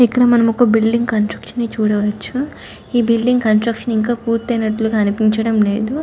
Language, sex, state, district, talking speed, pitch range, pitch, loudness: Telugu, female, Andhra Pradesh, Chittoor, 140 wpm, 215-240 Hz, 230 Hz, -16 LUFS